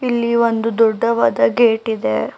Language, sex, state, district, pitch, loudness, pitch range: Kannada, female, Karnataka, Bangalore, 230 Hz, -16 LUFS, 190-235 Hz